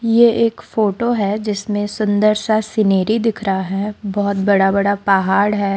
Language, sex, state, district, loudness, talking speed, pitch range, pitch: Hindi, female, Odisha, Sambalpur, -17 LUFS, 165 wpm, 200-220 Hz, 205 Hz